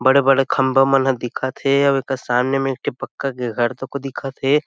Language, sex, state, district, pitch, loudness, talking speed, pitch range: Chhattisgarhi, male, Chhattisgarh, Sarguja, 135 Hz, -19 LUFS, 230 wpm, 130-135 Hz